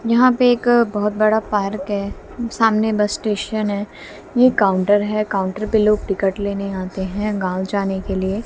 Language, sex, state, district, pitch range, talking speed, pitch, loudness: Hindi, female, Haryana, Jhajjar, 195-220 Hz, 175 wpm, 205 Hz, -19 LUFS